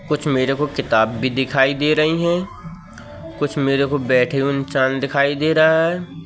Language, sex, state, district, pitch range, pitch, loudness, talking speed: Hindi, male, Madhya Pradesh, Katni, 135-155 Hz, 140 Hz, -18 LUFS, 180 wpm